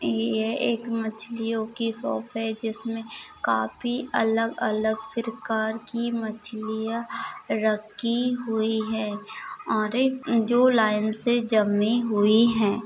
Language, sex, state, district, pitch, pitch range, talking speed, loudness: Hindi, female, Maharashtra, Pune, 220 Hz, 215-230 Hz, 110 wpm, -25 LUFS